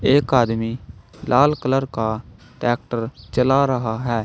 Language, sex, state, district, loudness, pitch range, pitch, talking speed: Hindi, male, Uttar Pradesh, Saharanpur, -20 LUFS, 110-135 Hz, 120 Hz, 125 wpm